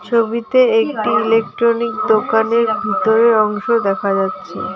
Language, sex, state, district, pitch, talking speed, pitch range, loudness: Bengali, female, West Bengal, Alipurduar, 225 Hz, 100 wpm, 215-235 Hz, -15 LUFS